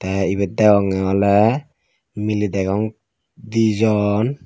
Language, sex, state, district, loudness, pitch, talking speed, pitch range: Chakma, male, Tripura, Dhalai, -18 LUFS, 105 Hz, 95 wpm, 100-110 Hz